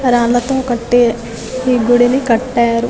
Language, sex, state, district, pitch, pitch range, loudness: Telugu, female, Telangana, Nalgonda, 245 Hz, 235-250 Hz, -14 LUFS